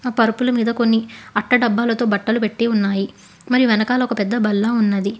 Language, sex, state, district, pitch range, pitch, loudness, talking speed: Telugu, female, Telangana, Hyderabad, 210-240 Hz, 230 Hz, -18 LUFS, 160 wpm